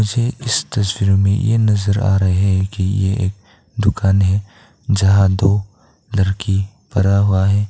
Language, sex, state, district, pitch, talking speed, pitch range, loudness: Hindi, male, Arunachal Pradesh, Papum Pare, 100 Hz, 150 wpm, 95-105 Hz, -17 LUFS